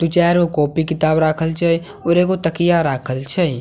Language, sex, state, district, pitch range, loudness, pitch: Maithili, male, Bihar, Katihar, 155-175 Hz, -17 LUFS, 165 Hz